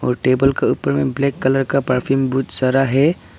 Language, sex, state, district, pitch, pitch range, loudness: Hindi, male, Arunachal Pradesh, Papum Pare, 135 Hz, 130-135 Hz, -17 LUFS